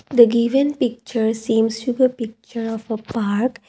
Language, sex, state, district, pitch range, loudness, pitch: English, female, Assam, Kamrup Metropolitan, 225-250 Hz, -20 LUFS, 230 Hz